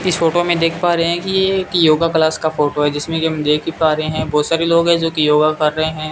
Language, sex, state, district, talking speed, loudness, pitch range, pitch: Hindi, male, Rajasthan, Bikaner, 305 wpm, -16 LUFS, 155-170 Hz, 160 Hz